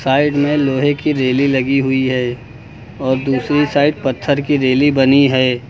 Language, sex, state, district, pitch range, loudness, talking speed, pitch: Hindi, male, Uttar Pradesh, Lucknow, 130-145 Hz, -15 LUFS, 170 wpm, 135 Hz